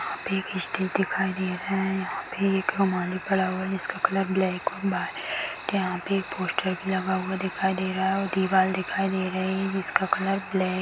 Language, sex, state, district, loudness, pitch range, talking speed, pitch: Hindi, female, Bihar, Vaishali, -26 LUFS, 185-195 Hz, 215 wpm, 190 Hz